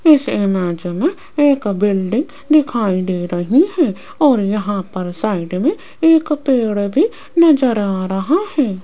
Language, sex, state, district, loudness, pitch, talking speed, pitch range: Hindi, female, Rajasthan, Jaipur, -16 LUFS, 235 Hz, 140 wpm, 190-310 Hz